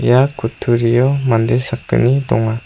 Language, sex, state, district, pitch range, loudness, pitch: Garo, female, Meghalaya, South Garo Hills, 115-130 Hz, -15 LUFS, 120 Hz